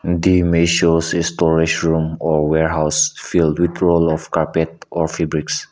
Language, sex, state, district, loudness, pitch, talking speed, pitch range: English, male, Nagaland, Kohima, -17 LUFS, 80 Hz, 155 wpm, 80-85 Hz